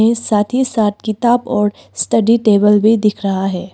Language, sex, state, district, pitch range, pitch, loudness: Hindi, female, Arunachal Pradesh, Papum Pare, 205-230 Hz, 215 Hz, -14 LUFS